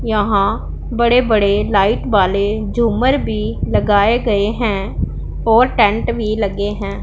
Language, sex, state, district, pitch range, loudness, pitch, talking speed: Hindi, male, Punjab, Pathankot, 205-230 Hz, -16 LUFS, 215 Hz, 130 wpm